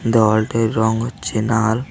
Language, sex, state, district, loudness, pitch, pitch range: Bengali, male, West Bengal, Cooch Behar, -18 LUFS, 110 Hz, 110-115 Hz